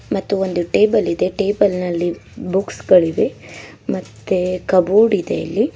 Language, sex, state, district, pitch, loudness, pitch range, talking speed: Kannada, female, Karnataka, Koppal, 190 Hz, -17 LUFS, 180-200 Hz, 125 wpm